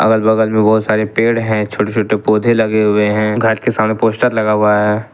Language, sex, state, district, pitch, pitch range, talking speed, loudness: Hindi, male, Jharkhand, Ranchi, 110 Hz, 105-110 Hz, 235 wpm, -14 LUFS